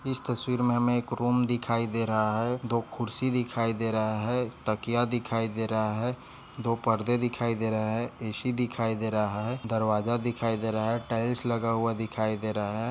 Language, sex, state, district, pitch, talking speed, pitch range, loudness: Hindi, male, Maharashtra, Dhule, 115 Hz, 205 wpm, 110-120 Hz, -29 LUFS